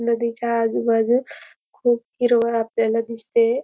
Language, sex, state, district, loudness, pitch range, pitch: Marathi, female, Maharashtra, Dhule, -21 LUFS, 230-240 Hz, 235 Hz